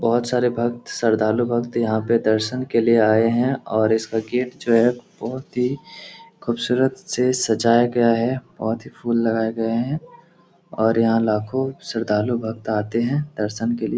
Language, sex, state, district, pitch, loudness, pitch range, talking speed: Hindi, male, Bihar, Lakhisarai, 120 Hz, -21 LUFS, 110-125 Hz, 175 wpm